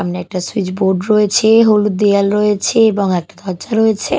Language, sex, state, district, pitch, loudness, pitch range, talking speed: Bengali, female, Odisha, Malkangiri, 205 Hz, -14 LUFS, 190-215 Hz, 170 wpm